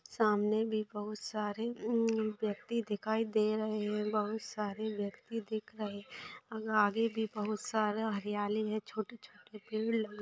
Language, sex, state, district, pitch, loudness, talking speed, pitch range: Hindi, female, Maharashtra, Pune, 215 Hz, -35 LUFS, 145 wpm, 210-220 Hz